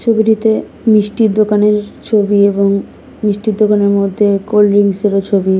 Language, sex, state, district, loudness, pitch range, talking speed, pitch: Bengali, female, West Bengal, Kolkata, -12 LUFS, 200-215 Hz, 120 wpm, 210 Hz